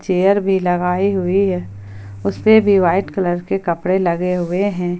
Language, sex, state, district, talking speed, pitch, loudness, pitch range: Hindi, male, Jharkhand, Ranchi, 180 wpm, 180 Hz, -17 LUFS, 175-195 Hz